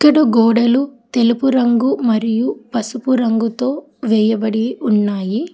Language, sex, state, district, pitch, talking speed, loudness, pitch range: Telugu, female, Telangana, Hyderabad, 235 Hz, 100 wpm, -16 LUFS, 225-260 Hz